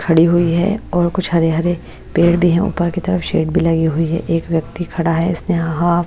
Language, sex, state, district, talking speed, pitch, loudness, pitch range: Hindi, female, Bihar, Patna, 235 wpm, 170 Hz, -16 LUFS, 165-175 Hz